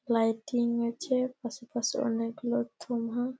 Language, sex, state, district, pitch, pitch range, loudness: Bengali, female, West Bengal, Malda, 240 Hz, 230-250 Hz, -31 LUFS